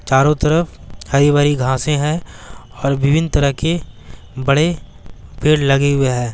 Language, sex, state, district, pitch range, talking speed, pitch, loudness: Hindi, male, Bihar, Gaya, 130-150 Hz, 135 wpm, 140 Hz, -16 LUFS